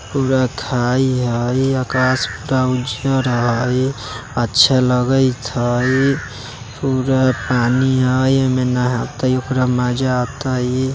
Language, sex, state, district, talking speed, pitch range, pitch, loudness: Bajjika, male, Bihar, Vaishali, 100 wpm, 125-130 Hz, 130 Hz, -17 LUFS